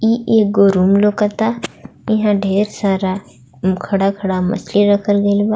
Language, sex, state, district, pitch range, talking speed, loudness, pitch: Bhojpuri, female, Jharkhand, Palamu, 195-210 Hz, 150 wpm, -15 LUFS, 205 Hz